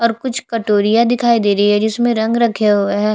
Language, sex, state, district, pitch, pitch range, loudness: Hindi, female, Chhattisgarh, Jashpur, 225 Hz, 210-235 Hz, -15 LUFS